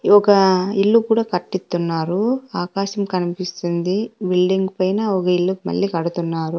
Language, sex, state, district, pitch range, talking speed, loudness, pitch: Telugu, female, Andhra Pradesh, Sri Satya Sai, 175-200 Hz, 110 wpm, -19 LUFS, 185 Hz